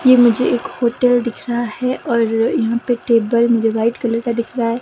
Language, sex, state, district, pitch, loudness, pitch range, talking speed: Hindi, female, Himachal Pradesh, Shimla, 235 Hz, -17 LUFS, 230-245 Hz, 210 wpm